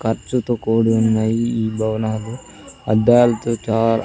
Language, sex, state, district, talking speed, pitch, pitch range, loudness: Telugu, male, Andhra Pradesh, Sri Satya Sai, 105 wpm, 115 Hz, 110-115 Hz, -18 LUFS